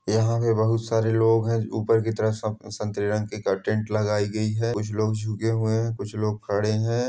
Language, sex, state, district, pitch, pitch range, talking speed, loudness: Hindi, male, Chhattisgarh, Balrampur, 110 Hz, 105-115 Hz, 210 wpm, -25 LUFS